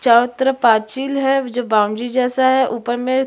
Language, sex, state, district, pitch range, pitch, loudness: Hindi, female, Chhattisgarh, Sukma, 235-265 Hz, 250 Hz, -17 LUFS